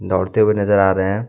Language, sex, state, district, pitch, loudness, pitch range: Hindi, male, Jharkhand, Deoghar, 100 Hz, -16 LUFS, 95-105 Hz